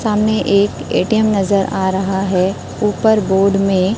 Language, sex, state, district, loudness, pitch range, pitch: Hindi, female, Chhattisgarh, Raipur, -15 LUFS, 190-210 Hz, 200 Hz